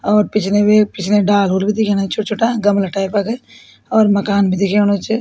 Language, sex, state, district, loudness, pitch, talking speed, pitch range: Garhwali, female, Uttarakhand, Tehri Garhwal, -15 LUFS, 205 Hz, 205 wpm, 200-215 Hz